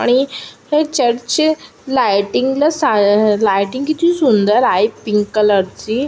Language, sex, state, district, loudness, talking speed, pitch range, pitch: Marathi, female, Maharashtra, Aurangabad, -15 LUFS, 140 wpm, 210-280 Hz, 240 Hz